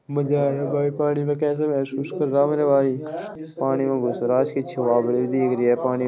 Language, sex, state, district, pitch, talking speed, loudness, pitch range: Hindi, male, Uttar Pradesh, Muzaffarnagar, 140 Hz, 215 wpm, -22 LUFS, 130-145 Hz